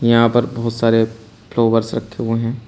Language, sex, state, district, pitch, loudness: Hindi, male, Uttar Pradesh, Shamli, 115 Hz, -17 LUFS